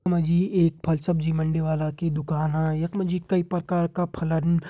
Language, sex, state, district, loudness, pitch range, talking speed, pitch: Garhwali, male, Uttarakhand, Uttarkashi, -25 LUFS, 160-175 Hz, 205 wpm, 165 Hz